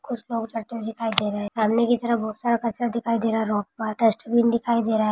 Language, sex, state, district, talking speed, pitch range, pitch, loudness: Hindi, female, Maharashtra, Dhule, 210 wpm, 220-235 Hz, 230 Hz, -24 LUFS